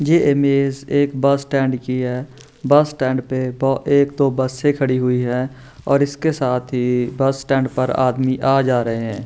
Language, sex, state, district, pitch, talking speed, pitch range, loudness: Hindi, male, Maharashtra, Chandrapur, 135 Hz, 190 wpm, 130-140 Hz, -18 LUFS